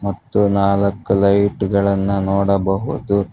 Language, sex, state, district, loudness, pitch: Kannada, male, Karnataka, Bangalore, -17 LUFS, 100 Hz